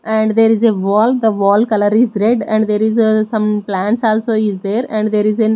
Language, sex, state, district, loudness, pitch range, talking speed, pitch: English, female, Odisha, Nuapada, -14 LUFS, 210-220 Hz, 225 wpm, 215 Hz